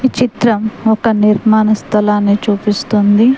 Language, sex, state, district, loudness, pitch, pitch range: Telugu, female, Telangana, Mahabubabad, -13 LUFS, 215 Hz, 210-225 Hz